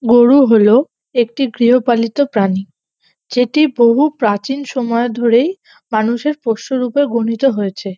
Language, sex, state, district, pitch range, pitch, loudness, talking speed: Bengali, female, West Bengal, North 24 Parganas, 225-270 Hz, 240 Hz, -14 LUFS, 105 wpm